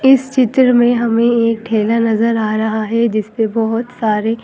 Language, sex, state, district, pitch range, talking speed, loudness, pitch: Hindi, female, Madhya Pradesh, Bhopal, 220-240 Hz, 190 wpm, -14 LUFS, 230 Hz